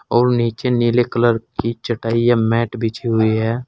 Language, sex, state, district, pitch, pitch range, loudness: Hindi, male, Uttar Pradesh, Saharanpur, 115 Hz, 115-120 Hz, -18 LUFS